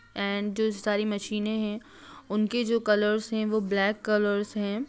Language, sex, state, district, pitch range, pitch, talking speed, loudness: Hindi, female, Bihar, Darbhanga, 205-220 Hz, 210 Hz, 160 wpm, -27 LUFS